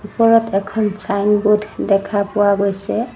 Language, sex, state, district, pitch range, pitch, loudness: Assamese, female, Assam, Sonitpur, 200-215 Hz, 210 Hz, -17 LUFS